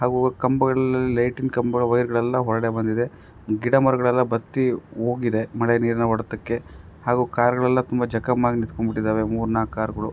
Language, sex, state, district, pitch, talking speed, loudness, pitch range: Kannada, male, Karnataka, Raichur, 120 Hz, 160 wpm, -22 LUFS, 115-125 Hz